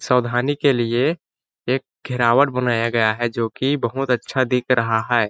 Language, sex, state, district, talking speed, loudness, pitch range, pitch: Hindi, male, Chhattisgarh, Balrampur, 160 wpm, -20 LUFS, 115-130 Hz, 125 Hz